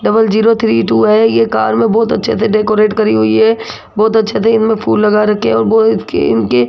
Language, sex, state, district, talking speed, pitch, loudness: Hindi, female, Rajasthan, Jaipur, 240 wpm, 215 Hz, -11 LUFS